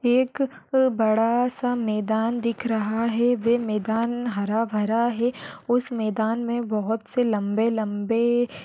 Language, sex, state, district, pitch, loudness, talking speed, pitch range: Hindi, female, Maharashtra, Solapur, 230 Hz, -24 LUFS, 145 wpm, 220-240 Hz